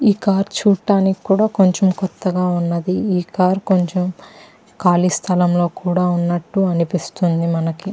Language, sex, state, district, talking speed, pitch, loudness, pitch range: Telugu, female, Andhra Pradesh, Krishna, 130 wpm, 180 Hz, -17 LUFS, 175-195 Hz